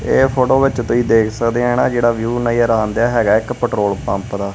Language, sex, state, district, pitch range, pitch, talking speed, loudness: Punjabi, male, Punjab, Kapurthala, 110-120 Hz, 120 Hz, 225 wpm, -16 LUFS